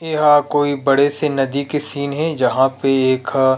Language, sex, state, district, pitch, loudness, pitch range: Chhattisgarhi, male, Chhattisgarh, Rajnandgaon, 140 Hz, -16 LUFS, 135-150 Hz